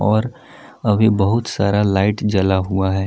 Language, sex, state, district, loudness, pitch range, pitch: Hindi, male, Jharkhand, Palamu, -17 LUFS, 95-110 Hz, 105 Hz